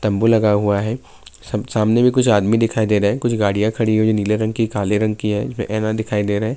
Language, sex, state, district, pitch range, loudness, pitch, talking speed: Urdu, male, Bihar, Saharsa, 105-115 Hz, -18 LUFS, 110 Hz, 255 wpm